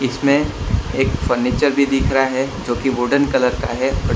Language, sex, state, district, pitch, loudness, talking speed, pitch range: Hindi, male, Gujarat, Valsad, 130 Hz, -18 LUFS, 190 wpm, 125-135 Hz